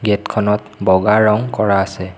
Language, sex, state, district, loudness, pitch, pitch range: Assamese, male, Assam, Kamrup Metropolitan, -15 LUFS, 105 Hz, 95-105 Hz